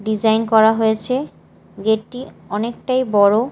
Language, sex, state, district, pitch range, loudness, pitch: Bengali, female, Odisha, Malkangiri, 215-250 Hz, -18 LUFS, 220 Hz